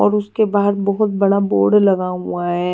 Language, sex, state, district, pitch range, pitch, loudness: Hindi, female, Delhi, New Delhi, 180-205 Hz, 200 Hz, -16 LUFS